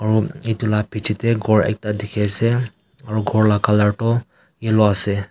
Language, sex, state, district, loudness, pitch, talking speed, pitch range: Nagamese, male, Nagaland, Kohima, -19 LUFS, 110 Hz, 180 wpm, 105-115 Hz